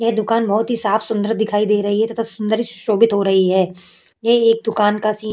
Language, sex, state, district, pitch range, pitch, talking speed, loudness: Hindi, female, Uttar Pradesh, Jalaun, 210-225 Hz, 215 Hz, 245 wpm, -17 LUFS